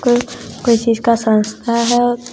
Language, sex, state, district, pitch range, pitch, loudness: Hindi, female, Bihar, West Champaran, 230-240 Hz, 235 Hz, -15 LUFS